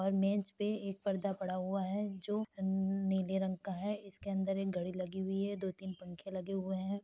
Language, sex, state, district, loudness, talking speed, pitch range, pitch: Hindi, female, Uttar Pradesh, Jalaun, -38 LUFS, 230 wpm, 190-200 Hz, 195 Hz